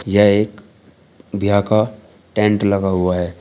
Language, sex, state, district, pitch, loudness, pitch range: Hindi, male, Uttar Pradesh, Shamli, 100 Hz, -17 LUFS, 95-105 Hz